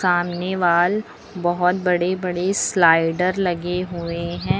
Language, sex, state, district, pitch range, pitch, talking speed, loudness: Hindi, female, Uttar Pradesh, Lucknow, 175-185 Hz, 180 Hz, 115 wpm, -20 LUFS